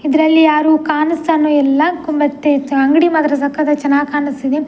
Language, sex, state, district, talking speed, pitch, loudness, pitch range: Kannada, female, Karnataka, Dakshina Kannada, 165 wpm, 300 Hz, -13 LUFS, 285-315 Hz